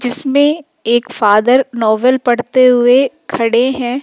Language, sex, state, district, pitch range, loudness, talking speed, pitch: Hindi, female, Madhya Pradesh, Umaria, 240-265 Hz, -12 LUFS, 120 wpm, 250 Hz